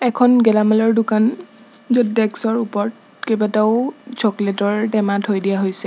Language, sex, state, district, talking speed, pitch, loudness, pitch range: Assamese, female, Assam, Sonitpur, 100 wpm, 220 Hz, -17 LUFS, 210-235 Hz